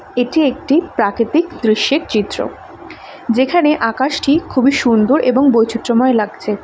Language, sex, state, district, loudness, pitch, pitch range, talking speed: Bengali, female, West Bengal, Jalpaiguri, -15 LUFS, 255 Hz, 230-290 Hz, 115 wpm